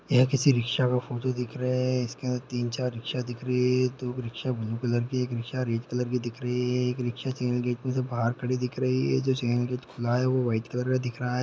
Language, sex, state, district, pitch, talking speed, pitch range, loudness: Hindi, male, Bihar, Lakhisarai, 125 Hz, 270 wpm, 120-130 Hz, -28 LUFS